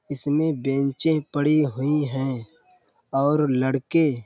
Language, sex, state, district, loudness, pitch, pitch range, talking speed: Hindi, male, Uttar Pradesh, Budaun, -23 LUFS, 145 Hz, 135-155 Hz, 115 wpm